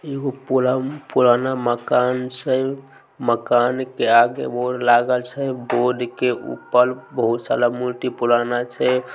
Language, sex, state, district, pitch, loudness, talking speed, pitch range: Maithili, male, Bihar, Samastipur, 125 Hz, -20 LUFS, 120 wpm, 120-130 Hz